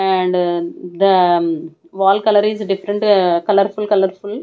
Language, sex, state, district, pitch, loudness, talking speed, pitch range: English, female, Punjab, Kapurthala, 195 Hz, -16 LUFS, 110 wpm, 180-205 Hz